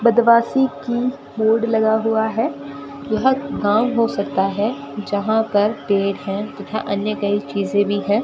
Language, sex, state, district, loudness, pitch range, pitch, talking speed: Hindi, female, Rajasthan, Bikaner, -19 LUFS, 200-230 Hz, 215 Hz, 155 wpm